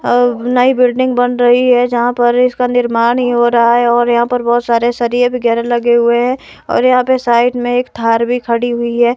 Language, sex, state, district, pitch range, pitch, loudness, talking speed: Hindi, female, Himachal Pradesh, Shimla, 235-245 Hz, 240 Hz, -12 LUFS, 230 wpm